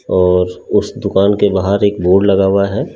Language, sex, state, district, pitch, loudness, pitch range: Hindi, male, Delhi, New Delhi, 100 Hz, -13 LUFS, 95-105 Hz